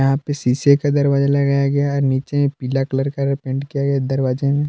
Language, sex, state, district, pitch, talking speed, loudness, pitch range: Hindi, male, Jharkhand, Palamu, 140 Hz, 230 wpm, -18 LUFS, 135-140 Hz